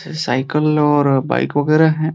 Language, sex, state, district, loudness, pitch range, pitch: Hindi, male, Uttar Pradesh, Deoria, -16 LUFS, 145-155 Hz, 150 Hz